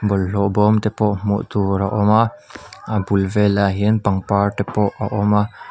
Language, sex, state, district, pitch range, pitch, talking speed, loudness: Mizo, male, Mizoram, Aizawl, 100-105 Hz, 105 Hz, 200 wpm, -18 LUFS